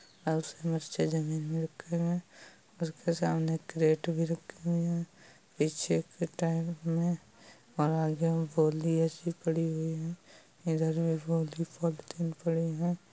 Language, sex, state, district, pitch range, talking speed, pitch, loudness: Hindi, male, Uttar Pradesh, Jalaun, 160-170 Hz, 130 wpm, 165 Hz, -32 LUFS